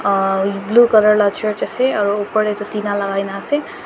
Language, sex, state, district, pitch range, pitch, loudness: Nagamese, male, Nagaland, Dimapur, 200-215 Hz, 210 Hz, -17 LUFS